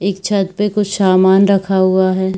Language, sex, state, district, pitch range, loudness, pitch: Hindi, female, Chhattisgarh, Bilaspur, 190-200 Hz, -13 LUFS, 190 Hz